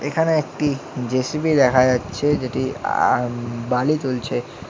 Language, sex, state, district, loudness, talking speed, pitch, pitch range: Bengali, male, West Bengal, Alipurduar, -20 LUFS, 130 wpm, 130 Hz, 125-150 Hz